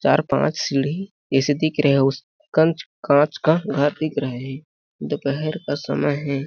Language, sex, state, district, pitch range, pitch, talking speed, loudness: Hindi, male, Chhattisgarh, Balrampur, 140-155 Hz, 145 Hz, 175 wpm, -21 LUFS